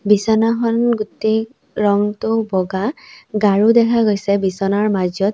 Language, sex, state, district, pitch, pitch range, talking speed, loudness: Assamese, female, Assam, Sonitpur, 215 Hz, 200-230 Hz, 100 wpm, -17 LUFS